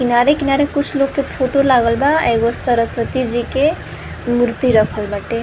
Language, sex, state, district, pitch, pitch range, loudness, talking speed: Bhojpuri, female, Uttar Pradesh, Varanasi, 250 Hz, 235-275 Hz, -16 LUFS, 165 wpm